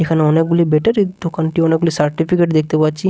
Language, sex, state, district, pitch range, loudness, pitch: Bengali, male, Bihar, Katihar, 155-170 Hz, -15 LUFS, 165 Hz